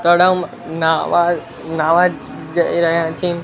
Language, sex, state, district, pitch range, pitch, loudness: Gujarati, male, Gujarat, Gandhinagar, 160-175 Hz, 170 Hz, -17 LUFS